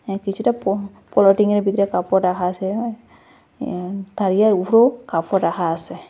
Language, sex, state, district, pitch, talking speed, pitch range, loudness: Bengali, female, Assam, Hailakandi, 195 Hz, 130 wpm, 185-210 Hz, -19 LUFS